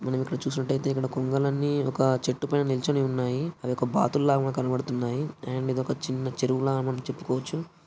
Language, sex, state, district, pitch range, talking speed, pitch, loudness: Telugu, male, Andhra Pradesh, Krishna, 130-140 Hz, 160 wpm, 130 Hz, -27 LUFS